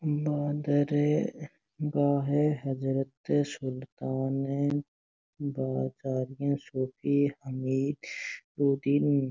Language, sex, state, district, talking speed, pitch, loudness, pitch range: Rajasthani, male, Rajasthan, Nagaur, 30 wpm, 140 Hz, -30 LUFS, 135-145 Hz